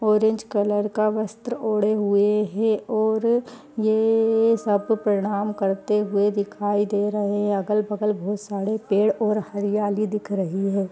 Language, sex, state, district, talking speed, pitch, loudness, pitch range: Hindi, female, Uttar Pradesh, Varanasi, 150 wpm, 210 Hz, -22 LUFS, 205-215 Hz